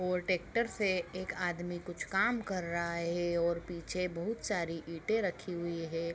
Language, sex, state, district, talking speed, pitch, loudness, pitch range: Hindi, female, Bihar, Bhagalpur, 175 wpm, 175 Hz, -35 LUFS, 170-185 Hz